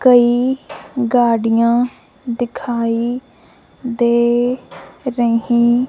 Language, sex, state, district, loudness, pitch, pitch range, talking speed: Hindi, male, Punjab, Fazilka, -17 LUFS, 240 Hz, 235-250 Hz, 50 wpm